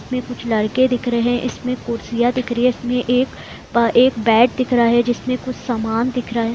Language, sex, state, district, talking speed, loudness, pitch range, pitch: Hindi, female, Bihar, Gopalganj, 200 wpm, -18 LUFS, 235-250 Hz, 245 Hz